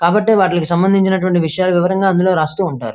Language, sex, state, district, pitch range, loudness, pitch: Telugu, male, Andhra Pradesh, Krishna, 170-190 Hz, -14 LUFS, 185 Hz